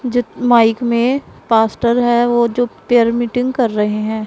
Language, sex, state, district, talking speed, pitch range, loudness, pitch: Hindi, female, Punjab, Pathankot, 170 wpm, 225-245 Hz, -15 LUFS, 240 Hz